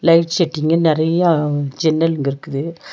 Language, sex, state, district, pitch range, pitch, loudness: Tamil, female, Tamil Nadu, Nilgiris, 150-165 Hz, 160 Hz, -17 LUFS